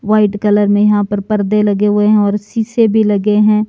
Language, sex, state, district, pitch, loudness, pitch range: Hindi, male, Himachal Pradesh, Shimla, 210 Hz, -13 LUFS, 205-215 Hz